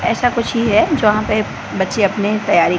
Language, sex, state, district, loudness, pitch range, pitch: Hindi, female, Gujarat, Gandhinagar, -16 LUFS, 205-230 Hz, 215 Hz